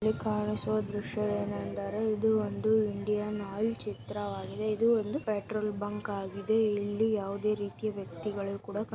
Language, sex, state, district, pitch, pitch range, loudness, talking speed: Kannada, female, Karnataka, Dharwad, 210 Hz, 200-215 Hz, -32 LUFS, 125 wpm